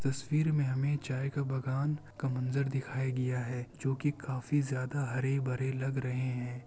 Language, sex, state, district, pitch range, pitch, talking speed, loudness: Hindi, male, Bihar, Kishanganj, 130-140 Hz, 135 Hz, 170 wpm, -34 LUFS